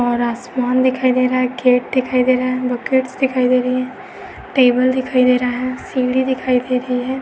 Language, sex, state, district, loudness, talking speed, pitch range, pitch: Hindi, female, Uttar Pradesh, Etah, -17 LUFS, 215 wpm, 250-260 Hz, 255 Hz